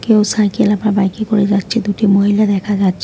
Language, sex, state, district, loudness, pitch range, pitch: Bengali, female, West Bengal, Alipurduar, -14 LUFS, 200-215 Hz, 205 Hz